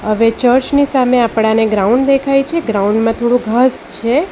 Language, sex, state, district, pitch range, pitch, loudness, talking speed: Gujarati, female, Gujarat, Valsad, 225-270 Hz, 245 Hz, -13 LUFS, 150 wpm